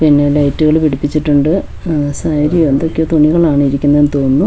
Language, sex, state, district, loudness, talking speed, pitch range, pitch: Malayalam, female, Kerala, Wayanad, -12 LUFS, 120 wpm, 145-160 Hz, 150 Hz